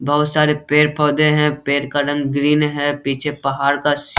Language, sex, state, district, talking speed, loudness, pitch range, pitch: Hindi, male, Bihar, Saharsa, 200 wpm, -17 LUFS, 145-150 Hz, 145 Hz